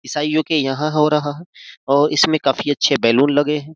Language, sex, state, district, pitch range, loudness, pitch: Hindi, male, Uttar Pradesh, Jyotiba Phule Nagar, 140-155 Hz, -17 LUFS, 150 Hz